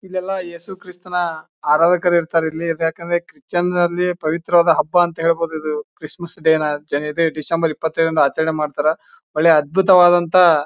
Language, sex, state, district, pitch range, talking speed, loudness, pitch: Kannada, male, Karnataka, Bijapur, 160-175 Hz, 125 wpm, -18 LUFS, 165 Hz